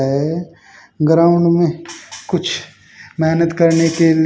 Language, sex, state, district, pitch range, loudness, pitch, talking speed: Hindi, male, Haryana, Jhajjar, 160-170 Hz, -15 LUFS, 165 Hz, 100 wpm